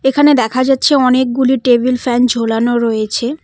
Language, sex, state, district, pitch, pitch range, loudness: Bengali, female, West Bengal, Cooch Behar, 255 Hz, 240-265 Hz, -13 LUFS